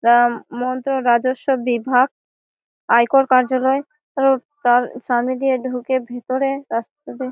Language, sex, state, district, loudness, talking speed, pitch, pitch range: Bengali, female, West Bengal, Malda, -18 LUFS, 125 wpm, 255 Hz, 245-270 Hz